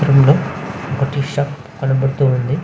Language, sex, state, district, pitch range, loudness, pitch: Telugu, male, Andhra Pradesh, Visakhapatnam, 135-145 Hz, -17 LUFS, 140 Hz